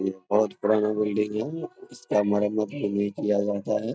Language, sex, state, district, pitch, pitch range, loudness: Hindi, male, Bihar, Jamui, 105 Hz, 100-110 Hz, -26 LUFS